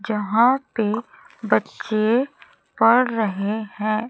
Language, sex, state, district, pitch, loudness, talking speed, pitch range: Hindi, female, Chhattisgarh, Raipur, 220 Hz, -21 LUFS, 90 wpm, 215-240 Hz